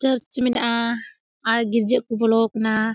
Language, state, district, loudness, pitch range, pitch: Surjapuri, Bihar, Kishanganj, -21 LUFS, 225-245 Hz, 230 Hz